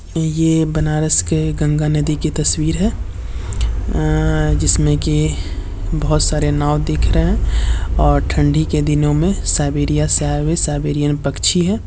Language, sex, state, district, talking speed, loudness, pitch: Hindi, male, Uttar Pradesh, Varanasi, 145 wpm, -17 LUFS, 145 Hz